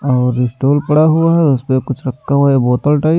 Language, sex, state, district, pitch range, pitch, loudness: Hindi, male, Delhi, New Delhi, 130-150 Hz, 140 Hz, -13 LUFS